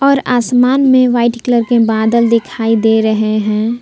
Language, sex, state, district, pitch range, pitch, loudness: Hindi, female, Jharkhand, Palamu, 220-245 Hz, 235 Hz, -12 LUFS